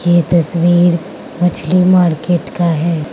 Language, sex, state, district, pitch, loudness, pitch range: Hindi, female, Mizoram, Aizawl, 175 Hz, -13 LUFS, 165-175 Hz